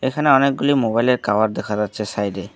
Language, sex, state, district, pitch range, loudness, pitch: Bengali, male, West Bengal, Alipurduar, 105-135 Hz, -19 LUFS, 110 Hz